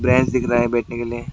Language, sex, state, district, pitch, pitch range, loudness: Hindi, male, West Bengal, Alipurduar, 120 Hz, 120-125 Hz, -20 LUFS